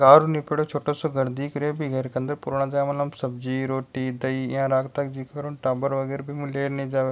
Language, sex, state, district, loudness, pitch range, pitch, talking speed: Rajasthani, male, Rajasthan, Nagaur, -25 LUFS, 130-145 Hz, 135 Hz, 110 wpm